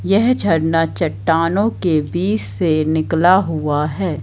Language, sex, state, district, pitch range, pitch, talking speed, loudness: Hindi, female, Madhya Pradesh, Katni, 155-190 Hz, 165 Hz, 130 wpm, -17 LUFS